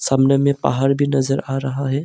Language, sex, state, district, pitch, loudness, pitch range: Hindi, male, Arunachal Pradesh, Longding, 135 Hz, -18 LUFS, 135-140 Hz